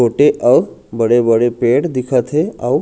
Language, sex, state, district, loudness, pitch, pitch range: Chhattisgarhi, male, Chhattisgarh, Raigarh, -14 LUFS, 120 Hz, 120-145 Hz